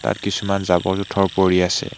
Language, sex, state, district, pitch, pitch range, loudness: Assamese, male, Assam, Hailakandi, 95 Hz, 90-100 Hz, -19 LUFS